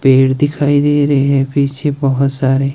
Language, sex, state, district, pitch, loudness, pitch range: Hindi, male, Himachal Pradesh, Shimla, 140 Hz, -13 LUFS, 135-145 Hz